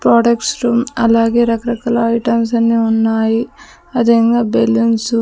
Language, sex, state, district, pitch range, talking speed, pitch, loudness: Telugu, female, Andhra Pradesh, Sri Satya Sai, 230-235 Hz, 115 wpm, 230 Hz, -14 LUFS